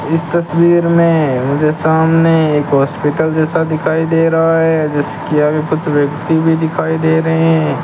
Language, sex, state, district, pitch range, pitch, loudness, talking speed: Hindi, male, Rajasthan, Bikaner, 150-165 Hz, 160 Hz, -13 LUFS, 160 wpm